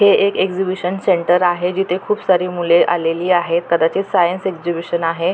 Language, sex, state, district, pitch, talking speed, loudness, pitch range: Marathi, female, Maharashtra, Pune, 180 Hz, 170 wpm, -17 LUFS, 170-190 Hz